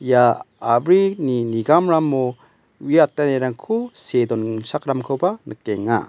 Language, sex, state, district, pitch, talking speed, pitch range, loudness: Garo, male, Meghalaya, West Garo Hills, 135 Hz, 70 wpm, 120-160 Hz, -19 LUFS